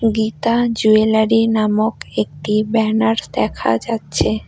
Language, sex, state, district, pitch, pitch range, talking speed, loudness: Bengali, female, West Bengal, Cooch Behar, 220 Hz, 210-225 Hz, 95 wpm, -17 LUFS